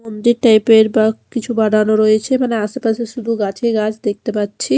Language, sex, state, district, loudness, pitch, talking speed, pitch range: Bengali, female, Odisha, Khordha, -15 LUFS, 220 Hz, 175 wpm, 215-235 Hz